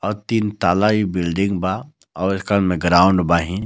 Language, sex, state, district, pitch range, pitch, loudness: Bhojpuri, male, Jharkhand, Palamu, 90-105 Hz, 95 Hz, -18 LUFS